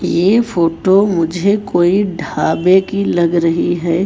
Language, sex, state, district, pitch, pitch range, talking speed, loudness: Hindi, male, Chhattisgarh, Raipur, 180 Hz, 170-200 Hz, 135 wpm, -14 LUFS